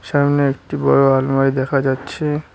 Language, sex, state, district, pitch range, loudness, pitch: Bengali, male, West Bengal, Cooch Behar, 135-145 Hz, -17 LUFS, 135 Hz